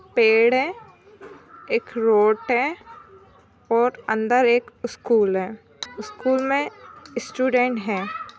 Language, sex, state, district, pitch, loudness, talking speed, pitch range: Hindi, female, Maharashtra, Chandrapur, 250 Hz, -21 LUFS, 100 wpm, 225-365 Hz